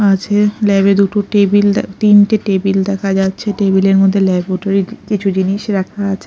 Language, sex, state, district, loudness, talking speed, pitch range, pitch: Bengali, female, Odisha, Khordha, -13 LUFS, 170 wpm, 195-205 Hz, 200 Hz